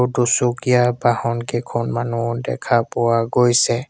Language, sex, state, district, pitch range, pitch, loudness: Assamese, male, Assam, Sonitpur, 120-125 Hz, 120 Hz, -18 LUFS